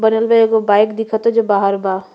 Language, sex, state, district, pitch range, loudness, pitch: Bhojpuri, female, Uttar Pradesh, Gorakhpur, 200-225 Hz, -14 LUFS, 220 Hz